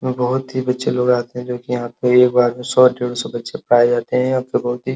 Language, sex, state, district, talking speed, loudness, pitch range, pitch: Hindi, male, Uttar Pradesh, Hamirpur, 305 wpm, -17 LUFS, 120-125 Hz, 125 Hz